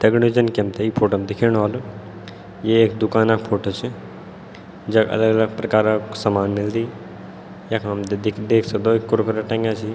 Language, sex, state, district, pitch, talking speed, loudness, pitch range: Garhwali, male, Uttarakhand, Tehri Garhwal, 110 Hz, 175 wpm, -20 LUFS, 105-110 Hz